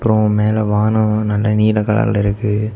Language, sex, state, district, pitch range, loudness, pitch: Tamil, male, Tamil Nadu, Kanyakumari, 105-110 Hz, -15 LUFS, 105 Hz